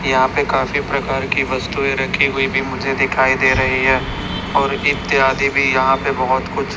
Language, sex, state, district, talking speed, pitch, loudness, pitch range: Hindi, male, Chhattisgarh, Raipur, 185 wpm, 135 Hz, -16 LUFS, 130-135 Hz